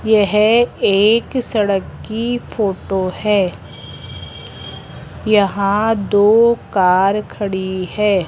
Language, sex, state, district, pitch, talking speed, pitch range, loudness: Hindi, female, Rajasthan, Jaipur, 205 Hz, 80 wpm, 195-220 Hz, -16 LUFS